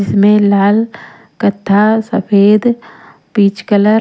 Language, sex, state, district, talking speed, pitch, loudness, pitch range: Hindi, female, Punjab, Pathankot, 105 wpm, 210 Hz, -11 LUFS, 200-220 Hz